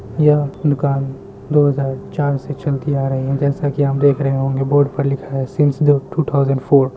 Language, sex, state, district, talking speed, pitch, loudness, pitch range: Hindi, male, Bihar, Samastipur, 225 wpm, 140 Hz, -17 LUFS, 135-145 Hz